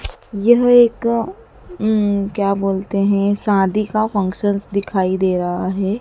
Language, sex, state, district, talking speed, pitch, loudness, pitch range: Hindi, female, Madhya Pradesh, Dhar, 130 wpm, 200 Hz, -17 LUFS, 195-220 Hz